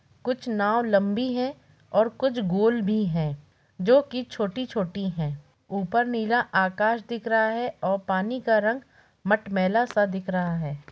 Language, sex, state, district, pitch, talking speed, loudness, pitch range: Hindi, female, Chhattisgarh, Rajnandgaon, 215 Hz, 155 wpm, -25 LUFS, 190-235 Hz